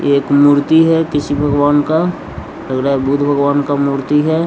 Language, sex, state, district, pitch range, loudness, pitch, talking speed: Hindi, male, Bihar, Patna, 140-150 Hz, -13 LUFS, 145 Hz, 215 wpm